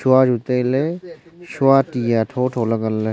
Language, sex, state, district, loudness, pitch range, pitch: Wancho, male, Arunachal Pradesh, Longding, -18 LUFS, 115-145 Hz, 130 Hz